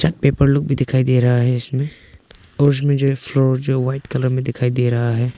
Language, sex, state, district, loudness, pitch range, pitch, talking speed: Hindi, male, Arunachal Pradesh, Longding, -18 LUFS, 125-140 Hz, 130 Hz, 235 wpm